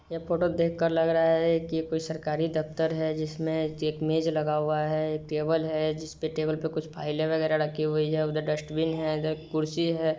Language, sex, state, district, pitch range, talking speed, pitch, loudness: Hindi, male, Bihar, Sitamarhi, 155-160 Hz, 135 wpm, 155 Hz, -28 LUFS